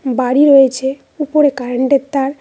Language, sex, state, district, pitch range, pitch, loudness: Bengali, female, West Bengal, Cooch Behar, 260-285 Hz, 270 Hz, -13 LUFS